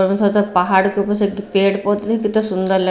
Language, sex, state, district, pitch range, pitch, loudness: Hindi, female, Bihar, Patna, 190-205 Hz, 200 Hz, -17 LUFS